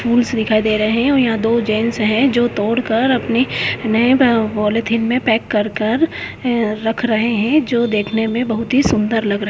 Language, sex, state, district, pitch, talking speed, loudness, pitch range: Hindi, female, West Bengal, Kolkata, 225 Hz, 210 wpm, -16 LUFS, 220-240 Hz